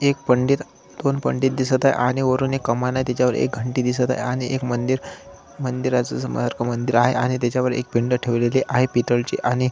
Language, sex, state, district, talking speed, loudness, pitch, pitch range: Marathi, male, Maharashtra, Solapur, 175 wpm, -21 LUFS, 125 Hz, 120-130 Hz